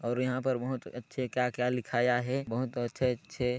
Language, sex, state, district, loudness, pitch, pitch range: Hindi, male, Chhattisgarh, Sarguja, -32 LUFS, 125 Hz, 120-130 Hz